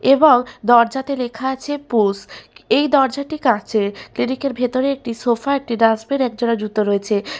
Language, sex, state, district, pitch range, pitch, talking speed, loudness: Bengali, female, West Bengal, Malda, 225-275 Hz, 250 Hz, 145 wpm, -18 LUFS